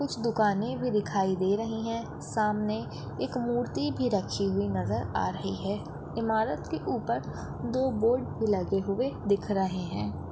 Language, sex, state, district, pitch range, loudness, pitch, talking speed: Hindi, female, Maharashtra, Dhule, 150-225 Hz, -30 LUFS, 205 Hz, 165 wpm